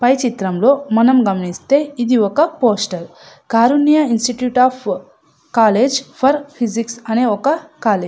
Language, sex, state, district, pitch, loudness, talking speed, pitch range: Telugu, female, Andhra Pradesh, Anantapur, 245 Hz, -16 LUFS, 135 wpm, 220-270 Hz